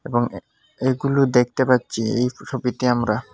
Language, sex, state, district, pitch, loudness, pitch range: Bengali, male, Assam, Hailakandi, 125 Hz, -21 LUFS, 120-130 Hz